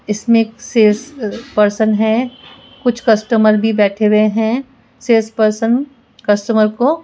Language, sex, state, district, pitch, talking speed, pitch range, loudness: Hindi, female, Rajasthan, Jaipur, 225 Hz, 130 wpm, 215-240 Hz, -14 LUFS